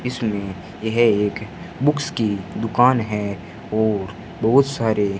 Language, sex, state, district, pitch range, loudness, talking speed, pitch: Hindi, male, Rajasthan, Bikaner, 105-125 Hz, -20 LUFS, 115 wpm, 110 Hz